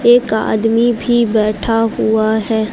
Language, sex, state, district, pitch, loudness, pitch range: Hindi, female, Uttar Pradesh, Lucknow, 225 Hz, -14 LUFS, 220-235 Hz